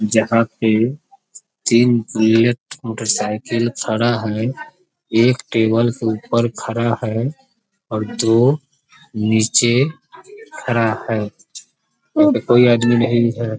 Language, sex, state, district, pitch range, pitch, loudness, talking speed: Hindi, male, Bihar, East Champaran, 110-135 Hz, 115 Hz, -17 LUFS, 95 wpm